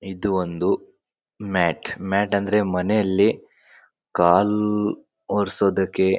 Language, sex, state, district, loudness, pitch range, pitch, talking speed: Kannada, male, Karnataka, Bijapur, -22 LUFS, 95-105 Hz, 100 Hz, 85 wpm